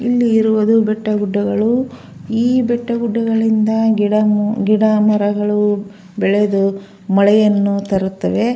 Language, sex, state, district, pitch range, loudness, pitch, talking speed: Kannada, female, Karnataka, Belgaum, 205-225 Hz, -15 LUFS, 215 Hz, 75 wpm